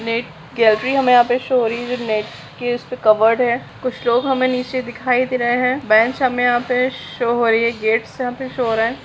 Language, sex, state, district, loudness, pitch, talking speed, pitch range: Hindi, female, Bihar, Bhagalpur, -18 LUFS, 245 Hz, 245 wpm, 230-250 Hz